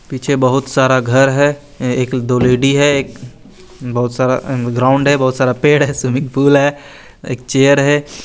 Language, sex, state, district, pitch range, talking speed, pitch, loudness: Hindi, male, Chandigarh, Chandigarh, 125-140 Hz, 175 wpm, 135 Hz, -13 LUFS